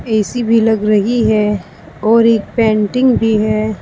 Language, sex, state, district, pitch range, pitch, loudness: Hindi, female, Uttar Pradesh, Saharanpur, 210-230 Hz, 220 Hz, -13 LUFS